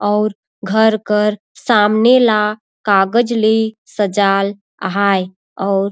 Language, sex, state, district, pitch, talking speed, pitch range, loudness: Surgujia, female, Chhattisgarh, Sarguja, 210 Hz, 100 wpm, 195-220 Hz, -15 LUFS